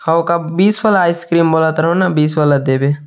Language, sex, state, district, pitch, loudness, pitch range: Chhattisgarhi, male, Chhattisgarh, Sarguja, 165 Hz, -13 LUFS, 150-170 Hz